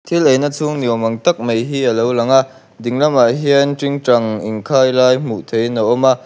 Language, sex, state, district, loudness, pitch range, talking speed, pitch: Mizo, male, Mizoram, Aizawl, -15 LUFS, 115-140 Hz, 220 wpm, 130 Hz